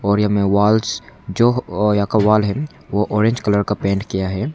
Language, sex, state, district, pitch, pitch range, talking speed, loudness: Hindi, male, Arunachal Pradesh, Longding, 105 Hz, 100-110 Hz, 225 wpm, -18 LUFS